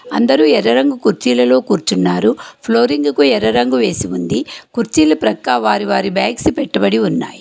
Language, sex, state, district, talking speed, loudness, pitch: Telugu, female, Telangana, Hyderabad, 140 wpm, -14 LUFS, 145 Hz